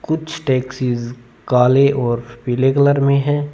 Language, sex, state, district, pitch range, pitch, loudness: Hindi, male, Punjab, Fazilka, 125-140 Hz, 130 Hz, -17 LUFS